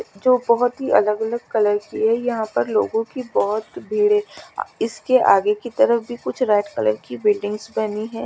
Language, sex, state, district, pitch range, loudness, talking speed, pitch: Hindi, female, Chandigarh, Chandigarh, 210-245 Hz, -20 LUFS, 195 wpm, 220 Hz